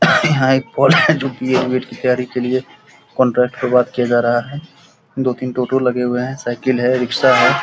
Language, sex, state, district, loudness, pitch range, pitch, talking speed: Hindi, male, Bihar, Purnia, -16 LUFS, 125-135 Hz, 130 Hz, 220 wpm